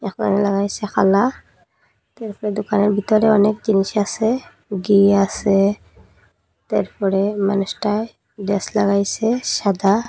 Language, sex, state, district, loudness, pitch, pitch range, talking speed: Bengali, female, Assam, Hailakandi, -18 LUFS, 205 Hz, 200-215 Hz, 95 wpm